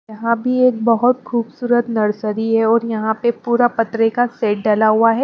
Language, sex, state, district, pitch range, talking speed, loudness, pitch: Hindi, female, Maharashtra, Mumbai Suburban, 220-240 Hz, 185 wpm, -17 LUFS, 230 Hz